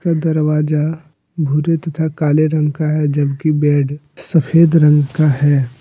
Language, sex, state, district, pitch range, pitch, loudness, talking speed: Hindi, male, Jharkhand, Deoghar, 145-160 Hz, 150 Hz, -15 LUFS, 135 wpm